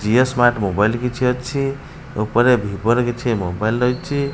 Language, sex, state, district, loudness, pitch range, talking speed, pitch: Odia, male, Odisha, Khordha, -19 LUFS, 110-130 Hz, 150 wpm, 120 Hz